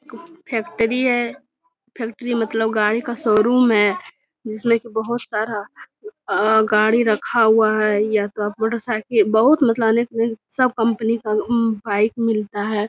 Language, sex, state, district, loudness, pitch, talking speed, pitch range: Hindi, female, Bihar, Jamui, -19 LUFS, 225 Hz, 125 wpm, 215-235 Hz